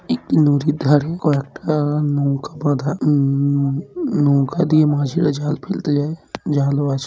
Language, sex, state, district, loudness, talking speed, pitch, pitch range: Bengali, male, West Bengal, Kolkata, -18 LUFS, 125 wpm, 145 Hz, 140-155 Hz